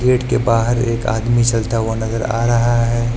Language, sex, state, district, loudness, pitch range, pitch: Hindi, male, Uttar Pradesh, Lucknow, -16 LUFS, 115-120 Hz, 115 Hz